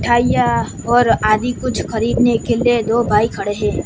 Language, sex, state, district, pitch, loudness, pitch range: Hindi, male, Gujarat, Gandhinagar, 235 Hz, -16 LUFS, 215-240 Hz